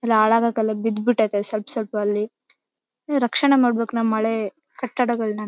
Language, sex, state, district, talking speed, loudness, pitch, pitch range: Kannada, female, Karnataka, Bellary, 130 wpm, -21 LUFS, 225 Hz, 215-240 Hz